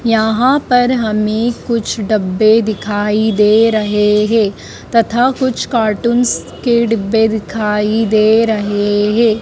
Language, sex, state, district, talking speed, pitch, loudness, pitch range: Hindi, female, Madhya Pradesh, Dhar, 115 wpm, 220 Hz, -13 LUFS, 210-230 Hz